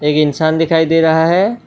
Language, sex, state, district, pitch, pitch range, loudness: Hindi, male, Assam, Kamrup Metropolitan, 160 Hz, 155-165 Hz, -13 LUFS